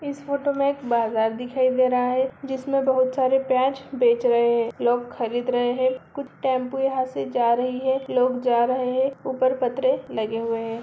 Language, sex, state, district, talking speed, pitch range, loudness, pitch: Hindi, female, Bihar, Begusarai, 200 wpm, 240-265 Hz, -23 LUFS, 255 Hz